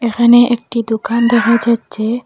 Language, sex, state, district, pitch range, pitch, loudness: Bengali, female, Assam, Hailakandi, 230-240 Hz, 235 Hz, -13 LUFS